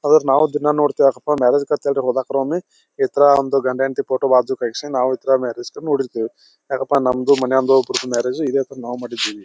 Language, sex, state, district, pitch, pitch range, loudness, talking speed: Kannada, male, Karnataka, Bijapur, 135 Hz, 125-145 Hz, -18 LUFS, 185 wpm